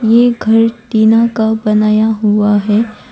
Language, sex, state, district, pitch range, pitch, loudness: Hindi, female, Arunachal Pradesh, Longding, 215-230 Hz, 220 Hz, -11 LUFS